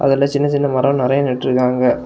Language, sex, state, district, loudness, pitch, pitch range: Tamil, male, Tamil Nadu, Kanyakumari, -16 LUFS, 135 Hz, 125-140 Hz